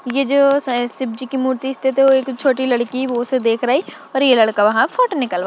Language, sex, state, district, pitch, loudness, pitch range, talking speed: Hindi, female, Chhattisgarh, Sukma, 260 Hz, -17 LUFS, 245-270 Hz, 230 wpm